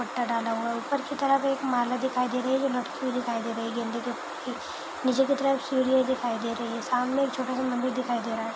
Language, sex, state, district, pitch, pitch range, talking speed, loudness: Hindi, female, Karnataka, Gulbarga, 250 Hz, 235-265 Hz, 260 wpm, -28 LUFS